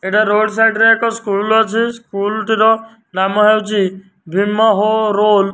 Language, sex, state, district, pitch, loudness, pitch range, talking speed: Odia, male, Odisha, Nuapada, 215 Hz, -14 LUFS, 200-225 Hz, 160 wpm